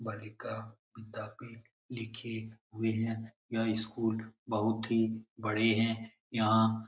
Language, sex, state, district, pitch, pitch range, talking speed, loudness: Hindi, male, Bihar, Lakhisarai, 110 Hz, 110-115 Hz, 115 wpm, -34 LUFS